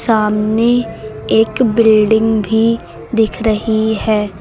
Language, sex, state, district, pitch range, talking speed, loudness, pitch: Hindi, female, Uttar Pradesh, Lucknow, 215-225 Hz, 95 wpm, -14 LUFS, 220 Hz